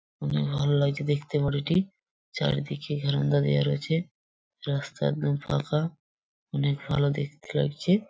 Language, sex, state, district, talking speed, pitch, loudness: Bengali, male, West Bengal, Purulia, 120 wpm, 145 Hz, -27 LUFS